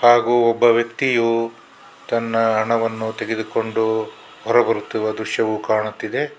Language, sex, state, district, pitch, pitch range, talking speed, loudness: Kannada, male, Karnataka, Bangalore, 115 Hz, 110-120 Hz, 95 wpm, -19 LUFS